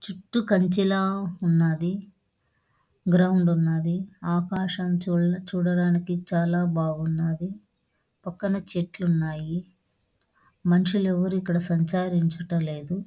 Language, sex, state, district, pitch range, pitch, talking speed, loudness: Telugu, female, Andhra Pradesh, Anantapur, 170-185 Hz, 180 Hz, 80 wpm, -25 LUFS